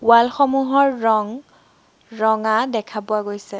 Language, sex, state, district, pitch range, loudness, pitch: Assamese, female, Assam, Sonitpur, 215-255 Hz, -18 LUFS, 225 Hz